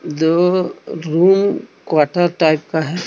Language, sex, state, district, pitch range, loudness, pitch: Hindi, male, Jharkhand, Deoghar, 155-175 Hz, -16 LUFS, 165 Hz